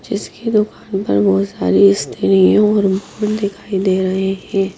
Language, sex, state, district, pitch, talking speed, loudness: Hindi, female, Haryana, Jhajjar, 190 Hz, 140 wpm, -16 LUFS